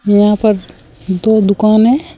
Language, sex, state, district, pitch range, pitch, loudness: Hindi, female, Uttar Pradesh, Shamli, 200-220 Hz, 210 Hz, -12 LUFS